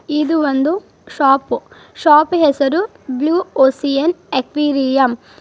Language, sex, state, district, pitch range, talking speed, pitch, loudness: Kannada, female, Karnataka, Bidar, 270-320 Hz, 100 wpm, 290 Hz, -15 LUFS